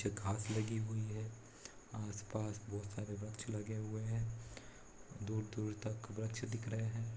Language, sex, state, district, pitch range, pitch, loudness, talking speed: Hindi, male, Bihar, Saran, 105-110 Hz, 110 Hz, -43 LUFS, 150 wpm